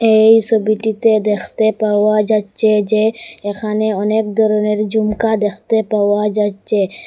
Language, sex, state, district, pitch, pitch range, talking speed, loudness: Bengali, female, Assam, Hailakandi, 215 Hz, 210-220 Hz, 110 wpm, -15 LUFS